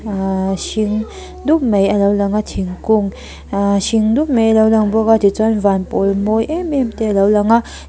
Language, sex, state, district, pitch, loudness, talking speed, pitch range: Mizo, female, Mizoram, Aizawl, 215 Hz, -15 LUFS, 180 wpm, 200-225 Hz